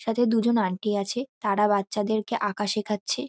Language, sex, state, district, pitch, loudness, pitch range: Bengali, female, West Bengal, North 24 Parganas, 215 Hz, -25 LUFS, 205-230 Hz